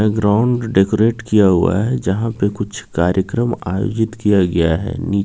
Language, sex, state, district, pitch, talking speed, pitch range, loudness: Hindi, male, Jharkhand, Ranchi, 105 Hz, 170 wpm, 95-115 Hz, -17 LUFS